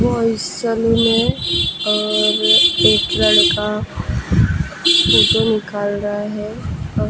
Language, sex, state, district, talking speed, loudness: Hindi, female, Maharashtra, Gondia, 95 wpm, -15 LUFS